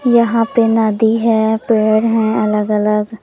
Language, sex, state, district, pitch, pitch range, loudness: Hindi, female, Madhya Pradesh, Umaria, 220 Hz, 215-230 Hz, -14 LUFS